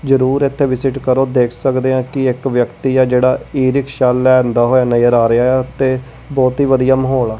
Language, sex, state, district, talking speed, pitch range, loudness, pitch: Punjabi, female, Punjab, Kapurthala, 210 wpm, 125-135 Hz, -14 LUFS, 130 Hz